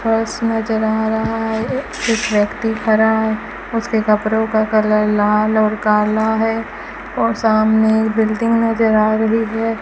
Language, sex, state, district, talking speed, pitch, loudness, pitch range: Hindi, female, Rajasthan, Bikaner, 145 wpm, 220 Hz, -16 LUFS, 215-225 Hz